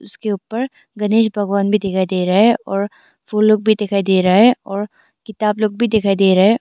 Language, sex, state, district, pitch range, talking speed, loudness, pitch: Hindi, female, Arunachal Pradesh, Longding, 195-220 Hz, 225 wpm, -16 LUFS, 210 Hz